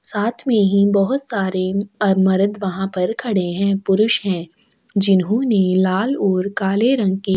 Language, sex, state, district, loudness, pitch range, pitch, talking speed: Hindi, female, Chhattisgarh, Sukma, -18 LUFS, 190-215 Hz, 195 Hz, 165 wpm